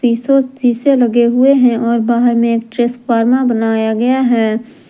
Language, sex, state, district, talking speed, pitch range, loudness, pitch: Hindi, female, Jharkhand, Garhwa, 160 wpm, 230-255 Hz, -13 LUFS, 240 Hz